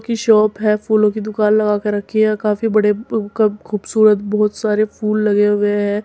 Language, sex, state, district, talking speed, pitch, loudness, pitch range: Hindi, female, Uttar Pradesh, Muzaffarnagar, 190 wpm, 210 Hz, -16 LUFS, 210-215 Hz